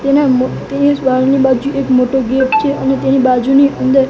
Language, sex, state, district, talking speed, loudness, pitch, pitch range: Gujarati, male, Gujarat, Gandhinagar, 130 wpm, -12 LUFS, 270 Hz, 260-275 Hz